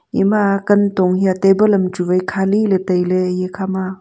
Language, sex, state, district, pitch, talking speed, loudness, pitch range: Wancho, female, Arunachal Pradesh, Longding, 190 Hz, 180 wpm, -16 LUFS, 185-200 Hz